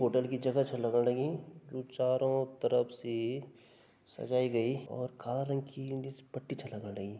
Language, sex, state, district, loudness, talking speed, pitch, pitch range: Garhwali, male, Uttarakhand, Tehri Garhwal, -34 LUFS, 175 wpm, 130 Hz, 125-135 Hz